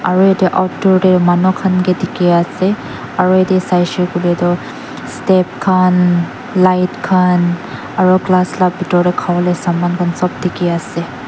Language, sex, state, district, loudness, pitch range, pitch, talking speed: Nagamese, female, Nagaland, Dimapur, -14 LUFS, 175-185 Hz, 180 Hz, 160 wpm